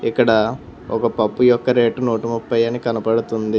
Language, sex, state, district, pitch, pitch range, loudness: Telugu, male, Telangana, Hyderabad, 115 Hz, 115-120 Hz, -18 LUFS